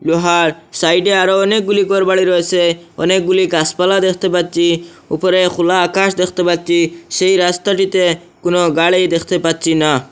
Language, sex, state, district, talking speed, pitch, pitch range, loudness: Bengali, male, Assam, Hailakandi, 130 wpm, 180 Hz, 170-185 Hz, -14 LUFS